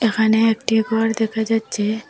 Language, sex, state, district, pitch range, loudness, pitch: Bengali, female, Assam, Hailakandi, 220-225 Hz, -19 LUFS, 220 Hz